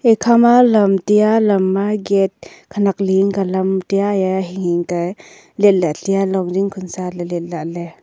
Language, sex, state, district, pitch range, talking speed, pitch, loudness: Wancho, female, Arunachal Pradesh, Longding, 185-205 Hz, 150 wpm, 195 Hz, -16 LUFS